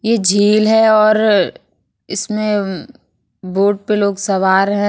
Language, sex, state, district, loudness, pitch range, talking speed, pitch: Bundeli, female, Uttar Pradesh, Budaun, -14 LUFS, 195-215 Hz, 135 wpm, 205 Hz